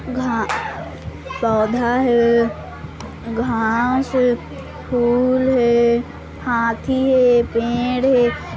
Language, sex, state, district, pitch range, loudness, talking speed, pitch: Hindi, female, Chhattisgarh, Kabirdham, 235-255 Hz, -18 LUFS, 75 wpm, 240 Hz